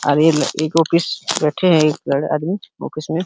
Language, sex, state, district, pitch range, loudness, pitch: Hindi, male, Uttar Pradesh, Hamirpur, 150-170 Hz, -17 LUFS, 160 Hz